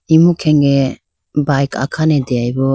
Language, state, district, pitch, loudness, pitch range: Idu Mishmi, Arunachal Pradesh, Lower Dibang Valley, 140 Hz, -15 LUFS, 135-155 Hz